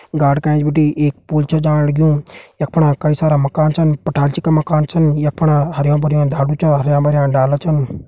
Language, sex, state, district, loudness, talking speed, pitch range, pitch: Hindi, male, Uttarakhand, Uttarkashi, -15 LUFS, 230 wpm, 145-155 Hz, 150 Hz